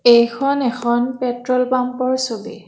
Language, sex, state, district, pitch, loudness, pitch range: Assamese, female, Assam, Kamrup Metropolitan, 250 Hz, -18 LUFS, 235-255 Hz